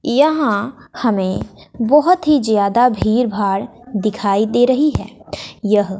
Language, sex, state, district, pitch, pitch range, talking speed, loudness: Hindi, female, Bihar, West Champaran, 230 Hz, 205-260 Hz, 120 wpm, -16 LUFS